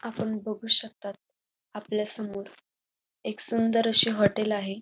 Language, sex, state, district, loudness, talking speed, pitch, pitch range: Marathi, female, Maharashtra, Dhule, -26 LUFS, 110 wpm, 215 Hz, 210-225 Hz